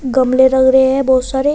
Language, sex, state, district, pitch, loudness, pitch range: Hindi, female, Uttar Pradesh, Shamli, 260 Hz, -12 LUFS, 260-265 Hz